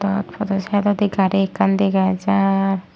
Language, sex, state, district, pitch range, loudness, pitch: Chakma, female, Tripura, Unakoti, 195-200 Hz, -19 LUFS, 195 Hz